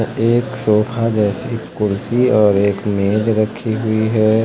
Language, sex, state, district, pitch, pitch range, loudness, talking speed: Hindi, male, Uttar Pradesh, Lucknow, 110 Hz, 105-115 Hz, -16 LUFS, 135 wpm